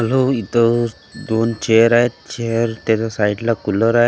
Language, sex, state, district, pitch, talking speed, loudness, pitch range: Marathi, male, Maharashtra, Gondia, 115 Hz, 160 wpm, -17 LUFS, 110-120 Hz